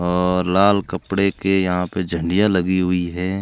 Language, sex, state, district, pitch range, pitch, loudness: Hindi, male, Rajasthan, Jaisalmer, 90-95 Hz, 90 Hz, -19 LUFS